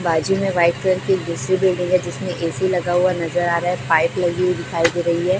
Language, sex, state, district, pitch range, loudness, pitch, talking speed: Hindi, female, Chhattisgarh, Raipur, 170-185 Hz, -19 LUFS, 175 Hz, 275 wpm